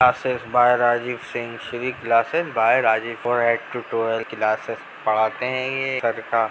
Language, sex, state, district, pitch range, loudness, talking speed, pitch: Hindi, male, Bihar, Jahanabad, 115-125 Hz, -22 LUFS, 165 wpm, 120 Hz